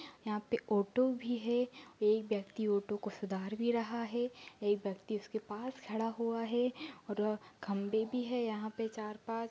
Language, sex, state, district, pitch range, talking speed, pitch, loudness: Hindi, female, Bihar, Jahanabad, 210-240 Hz, 185 wpm, 220 Hz, -37 LUFS